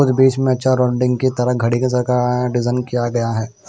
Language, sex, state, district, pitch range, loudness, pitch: Hindi, male, Punjab, Kapurthala, 120-130 Hz, -17 LUFS, 125 Hz